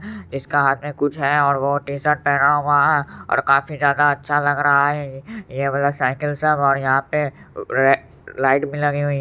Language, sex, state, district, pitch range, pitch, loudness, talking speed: Hindi, male, Bihar, Supaul, 140-145 Hz, 145 Hz, -19 LUFS, 195 wpm